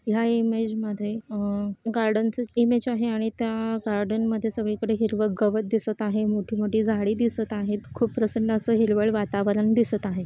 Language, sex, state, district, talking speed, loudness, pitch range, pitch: Marathi, female, Maharashtra, Solapur, 170 wpm, -25 LUFS, 210-225 Hz, 220 Hz